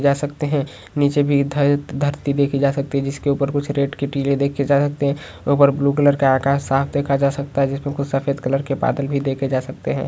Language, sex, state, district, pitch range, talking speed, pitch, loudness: Hindi, male, West Bengal, Kolkata, 140-145 Hz, 250 wpm, 140 Hz, -19 LUFS